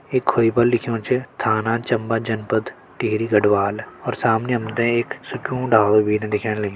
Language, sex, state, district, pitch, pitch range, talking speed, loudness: Hindi, male, Uttarakhand, Tehri Garhwal, 115 Hz, 110-120 Hz, 170 wpm, -20 LUFS